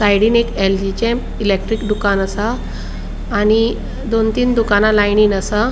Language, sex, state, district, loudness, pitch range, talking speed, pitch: Konkani, female, Goa, North and South Goa, -16 LUFS, 205-225 Hz, 125 wpm, 210 Hz